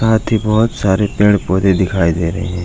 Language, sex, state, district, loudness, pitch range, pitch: Hindi, male, Bihar, Jahanabad, -14 LUFS, 95-105 Hz, 100 Hz